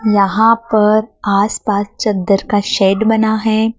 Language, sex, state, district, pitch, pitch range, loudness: Hindi, female, Madhya Pradesh, Dhar, 215 Hz, 200-220 Hz, -14 LUFS